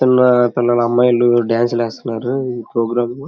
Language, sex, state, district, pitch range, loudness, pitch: Telugu, male, Andhra Pradesh, Krishna, 120-125 Hz, -16 LUFS, 120 Hz